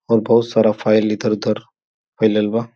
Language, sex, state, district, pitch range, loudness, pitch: Bhojpuri, male, Uttar Pradesh, Gorakhpur, 105-115 Hz, -17 LUFS, 110 Hz